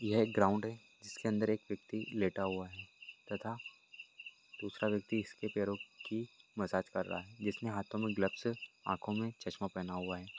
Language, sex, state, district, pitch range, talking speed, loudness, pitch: Hindi, male, Bihar, Purnia, 95-110 Hz, 180 wpm, -38 LUFS, 105 Hz